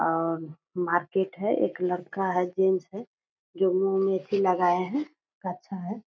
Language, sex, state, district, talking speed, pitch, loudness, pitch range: Hindi, female, Bihar, Purnia, 160 wpm, 185 Hz, -27 LUFS, 180-195 Hz